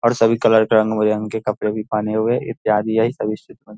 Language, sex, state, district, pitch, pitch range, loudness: Hindi, male, Bihar, Saharsa, 110 Hz, 105-115 Hz, -18 LUFS